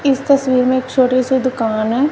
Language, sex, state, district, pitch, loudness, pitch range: Hindi, female, Punjab, Kapurthala, 255 Hz, -15 LUFS, 255-270 Hz